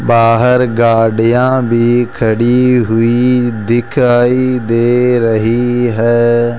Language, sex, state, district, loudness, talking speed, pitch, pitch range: Hindi, male, Rajasthan, Jaipur, -11 LUFS, 80 wpm, 120 Hz, 115-125 Hz